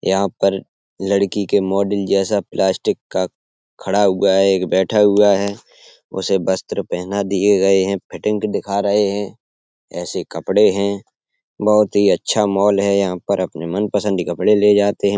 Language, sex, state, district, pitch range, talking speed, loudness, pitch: Hindi, male, Uttar Pradesh, Etah, 95-100 Hz, 165 wpm, -17 LUFS, 100 Hz